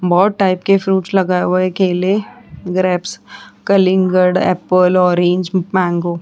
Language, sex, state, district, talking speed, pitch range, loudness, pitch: Hindi, female, Chhattisgarh, Korba, 125 wpm, 180-190 Hz, -14 LUFS, 185 Hz